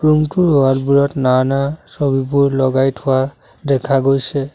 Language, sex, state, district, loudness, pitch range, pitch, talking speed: Assamese, male, Assam, Sonitpur, -15 LUFS, 135-140 Hz, 135 Hz, 130 wpm